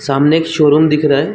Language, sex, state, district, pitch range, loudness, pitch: Hindi, male, Chhattisgarh, Balrampur, 145-155 Hz, -12 LUFS, 150 Hz